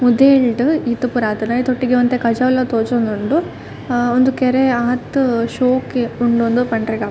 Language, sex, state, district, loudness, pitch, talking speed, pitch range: Tulu, female, Karnataka, Dakshina Kannada, -16 LUFS, 245 Hz, 145 wpm, 235-255 Hz